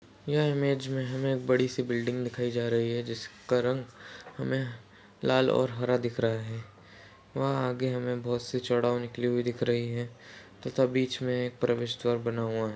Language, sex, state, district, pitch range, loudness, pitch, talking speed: Hindi, male, Uttar Pradesh, Etah, 120-130 Hz, -30 LUFS, 120 Hz, 185 wpm